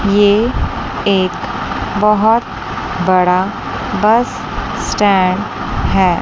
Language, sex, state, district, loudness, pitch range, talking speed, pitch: Hindi, female, Chandigarh, Chandigarh, -15 LUFS, 185-215 Hz, 65 wpm, 205 Hz